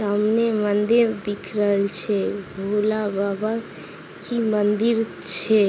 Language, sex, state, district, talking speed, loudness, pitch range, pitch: Maithili, female, Bihar, Begusarai, 95 wpm, -22 LUFS, 205-220 Hz, 210 Hz